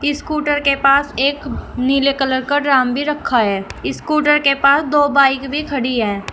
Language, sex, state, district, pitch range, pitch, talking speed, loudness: Hindi, female, Uttar Pradesh, Shamli, 265-290 Hz, 275 Hz, 180 wpm, -16 LUFS